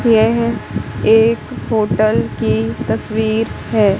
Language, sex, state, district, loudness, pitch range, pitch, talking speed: Hindi, female, Madhya Pradesh, Katni, -16 LUFS, 195-225 Hz, 220 Hz, 90 wpm